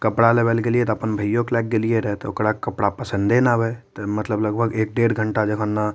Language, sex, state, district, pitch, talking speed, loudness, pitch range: Maithili, male, Bihar, Madhepura, 110 Hz, 260 wpm, -21 LUFS, 105-115 Hz